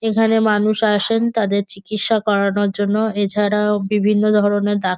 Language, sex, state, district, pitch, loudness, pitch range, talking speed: Bengali, female, West Bengal, North 24 Parganas, 210 Hz, -17 LUFS, 205-215 Hz, 145 wpm